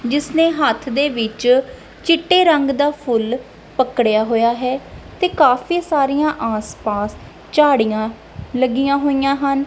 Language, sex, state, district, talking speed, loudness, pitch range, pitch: Punjabi, female, Punjab, Kapurthala, 130 wpm, -17 LUFS, 235-295 Hz, 270 Hz